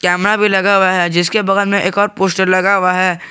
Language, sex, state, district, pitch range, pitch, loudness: Hindi, male, Jharkhand, Garhwa, 185-200 Hz, 190 Hz, -13 LUFS